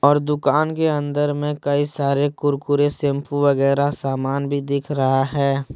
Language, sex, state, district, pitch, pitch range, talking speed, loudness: Hindi, male, Jharkhand, Deoghar, 145 Hz, 140-145 Hz, 155 wpm, -20 LUFS